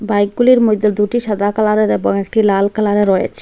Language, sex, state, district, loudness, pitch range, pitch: Bengali, female, Assam, Hailakandi, -14 LUFS, 200-215 Hz, 210 Hz